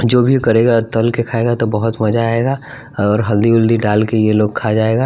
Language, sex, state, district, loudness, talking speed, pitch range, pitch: Hindi, male, Bihar, West Champaran, -14 LUFS, 225 wpm, 110-120 Hz, 115 Hz